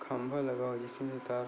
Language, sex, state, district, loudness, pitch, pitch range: Hindi, male, Chhattisgarh, Bastar, -37 LUFS, 125 Hz, 125-130 Hz